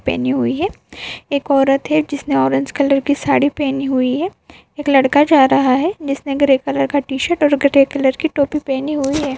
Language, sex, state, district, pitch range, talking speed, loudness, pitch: Hindi, female, Maharashtra, Pune, 270-290 Hz, 205 wpm, -16 LUFS, 280 Hz